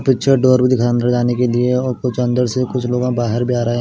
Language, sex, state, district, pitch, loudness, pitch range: Hindi, male, Odisha, Malkangiri, 125 Hz, -16 LUFS, 120-125 Hz